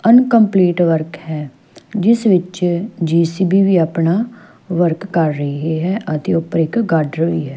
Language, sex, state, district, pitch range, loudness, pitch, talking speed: Punjabi, female, Punjab, Fazilka, 160-195 Hz, -16 LUFS, 175 Hz, 145 wpm